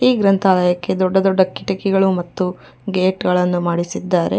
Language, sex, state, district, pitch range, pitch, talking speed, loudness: Kannada, female, Karnataka, Bangalore, 180-195 Hz, 185 Hz, 125 wpm, -17 LUFS